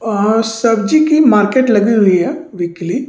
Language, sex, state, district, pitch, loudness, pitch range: Hindi, male, Delhi, New Delhi, 220 Hz, -12 LUFS, 205-250 Hz